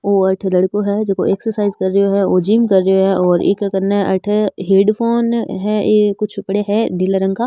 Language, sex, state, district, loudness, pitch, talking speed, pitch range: Rajasthani, female, Rajasthan, Nagaur, -15 LUFS, 200 Hz, 215 wpm, 190-210 Hz